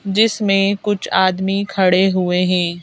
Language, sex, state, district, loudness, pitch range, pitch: Hindi, female, Madhya Pradesh, Bhopal, -16 LUFS, 185-200 Hz, 190 Hz